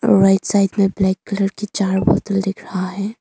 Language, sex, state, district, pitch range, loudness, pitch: Hindi, female, Arunachal Pradesh, Longding, 195-200 Hz, -18 LUFS, 195 Hz